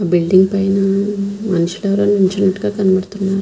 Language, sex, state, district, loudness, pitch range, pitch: Telugu, female, Andhra Pradesh, Visakhapatnam, -15 LUFS, 190-200 Hz, 195 Hz